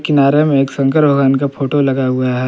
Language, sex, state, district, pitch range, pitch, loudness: Hindi, male, Jharkhand, Palamu, 135-145 Hz, 140 Hz, -13 LUFS